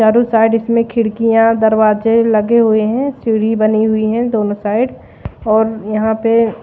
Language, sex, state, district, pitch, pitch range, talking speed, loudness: Hindi, female, Odisha, Malkangiri, 225 Hz, 215-230 Hz, 155 wpm, -13 LUFS